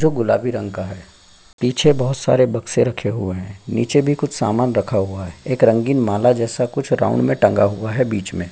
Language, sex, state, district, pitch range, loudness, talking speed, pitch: Hindi, male, Chhattisgarh, Sukma, 95-125 Hz, -18 LUFS, 225 wpm, 115 Hz